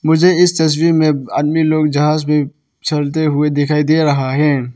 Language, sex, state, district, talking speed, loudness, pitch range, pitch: Hindi, male, Arunachal Pradesh, Papum Pare, 175 wpm, -14 LUFS, 145-160 Hz, 150 Hz